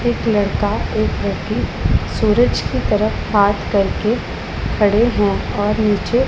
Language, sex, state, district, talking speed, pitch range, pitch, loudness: Hindi, female, Punjab, Pathankot, 125 wpm, 205-225 Hz, 210 Hz, -17 LUFS